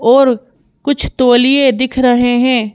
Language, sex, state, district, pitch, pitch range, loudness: Hindi, female, Madhya Pradesh, Bhopal, 255 Hz, 245-260 Hz, -12 LUFS